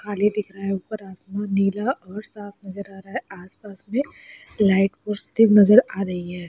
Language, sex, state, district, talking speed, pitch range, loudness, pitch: Hindi, female, Chhattisgarh, Raigarh, 185 wpm, 195-210 Hz, -21 LUFS, 200 Hz